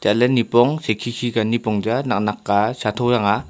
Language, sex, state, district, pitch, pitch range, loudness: Wancho, male, Arunachal Pradesh, Longding, 115 Hz, 105-120 Hz, -19 LUFS